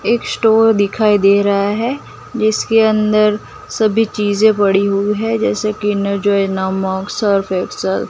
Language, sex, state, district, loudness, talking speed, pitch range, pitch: Hindi, female, Gujarat, Gandhinagar, -15 LUFS, 150 wpm, 200-220 Hz, 210 Hz